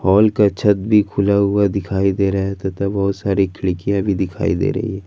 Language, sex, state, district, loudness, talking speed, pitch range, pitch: Hindi, male, Jharkhand, Ranchi, -18 LUFS, 225 wpm, 95-100 Hz, 100 Hz